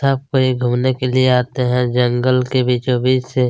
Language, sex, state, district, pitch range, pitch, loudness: Hindi, male, Chhattisgarh, Kabirdham, 125-130 Hz, 125 Hz, -16 LUFS